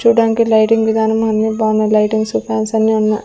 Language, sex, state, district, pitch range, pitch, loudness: Telugu, female, Andhra Pradesh, Sri Satya Sai, 215-225 Hz, 220 Hz, -14 LUFS